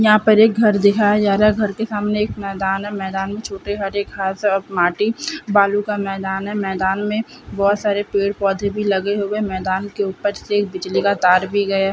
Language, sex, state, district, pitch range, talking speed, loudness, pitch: Hindi, female, Bihar, Saran, 195-210 Hz, 225 wpm, -18 LUFS, 200 Hz